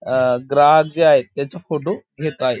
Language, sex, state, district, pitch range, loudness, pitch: Marathi, female, Maharashtra, Dhule, 130-155 Hz, -17 LUFS, 145 Hz